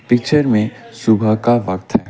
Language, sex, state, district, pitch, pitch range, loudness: Hindi, male, Assam, Kamrup Metropolitan, 115 Hz, 110-120 Hz, -16 LUFS